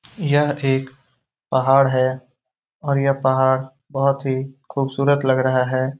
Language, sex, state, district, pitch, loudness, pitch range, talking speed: Hindi, male, Bihar, Lakhisarai, 135 Hz, -19 LUFS, 130-140 Hz, 130 wpm